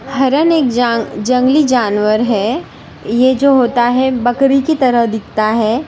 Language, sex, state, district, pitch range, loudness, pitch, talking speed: Hindi, female, Uttar Pradesh, Varanasi, 230-270 Hz, -13 LUFS, 245 Hz, 145 wpm